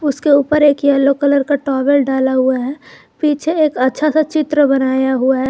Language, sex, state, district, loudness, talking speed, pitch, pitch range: Hindi, female, Jharkhand, Garhwa, -14 LUFS, 195 wpm, 280 Hz, 265-295 Hz